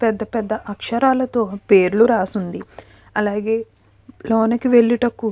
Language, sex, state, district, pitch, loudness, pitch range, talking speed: Telugu, female, Andhra Pradesh, Krishna, 225 Hz, -18 LUFS, 210-235 Hz, 100 wpm